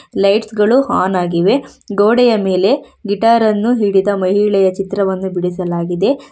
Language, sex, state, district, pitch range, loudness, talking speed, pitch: Kannada, female, Karnataka, Bangalore, 190-220 Hz, -14 LUFS, 115 wpm, 200 Hz